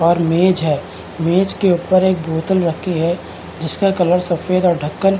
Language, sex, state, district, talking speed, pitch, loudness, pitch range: Hindi, male, Uttarakhand, Uttarkashi, 195 wpm, 175 Hz, -16 LUFS, 165-185 Hz